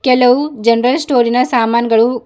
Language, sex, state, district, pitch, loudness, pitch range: Kannada, female, Karnataka, Bidar, 245 Hz, -12 LUFS, 235-255 Hz